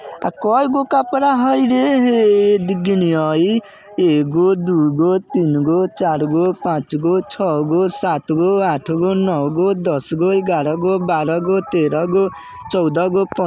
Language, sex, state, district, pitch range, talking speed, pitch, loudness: Bajjika, male, Bihar, Vaishali, 160-195 Hz, 100 wpm, 180 Hz, -16 LUFS